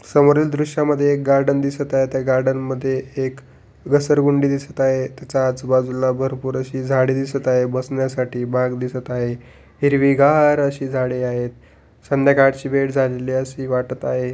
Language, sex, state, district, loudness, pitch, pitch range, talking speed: Marathi, male, Maharashtra, Pune, -19 LUFS, 130 Hz, 130-140 Hz, 150 wpm